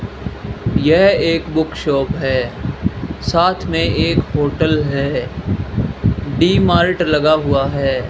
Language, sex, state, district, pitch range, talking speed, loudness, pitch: Hindi, male, Rajasthan, Bikaner, 135-160 Hz, 110 wpm, -16 LUFS, 145 Hz